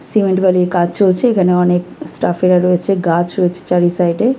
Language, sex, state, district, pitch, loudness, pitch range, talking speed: Bengali, female, West Bengal, Kolkata, 180 Hz, -14 LUFS, 175-190 Hz, 190 wpm